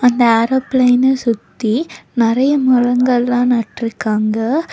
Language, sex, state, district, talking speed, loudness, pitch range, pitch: Tamil, female, Tamil Nadu, Nilgiris, 75 wpm, -15 LUFS, 230-260 Hz, 245 Hz